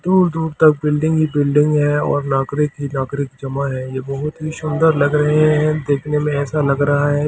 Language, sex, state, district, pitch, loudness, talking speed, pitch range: Hindi, male, Delhi, New Delhi, 150 Hz, -17 LUFS, 245 wpm, 140-155 Hz